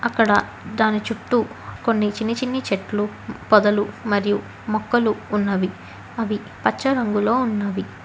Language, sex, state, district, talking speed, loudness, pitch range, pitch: Telugu, female, Telangana, Hyderabad, 110 wpm, -21 LUFS, 205-230 Hz, 215 Hz